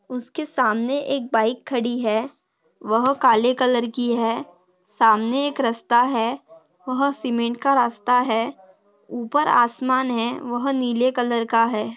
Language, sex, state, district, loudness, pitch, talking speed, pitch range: Hindi, female, Maharashtra, Dhule, -21 LUFS, 240 Hz, 140 wpm, 230-255 Hz